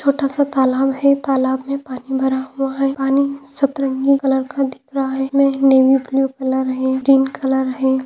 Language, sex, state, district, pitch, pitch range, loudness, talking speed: Hindi, female, Jharkhand, Jamtara, 270 Hz, 265-275 Hz, -17 LUFS, 195 wpm